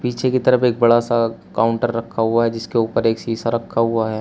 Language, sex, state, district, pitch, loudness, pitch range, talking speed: Hindi, male, Uttar Pradesh, Shamli, 115 Hz, -18 LUFS, 115-120 Hz, 240 wpm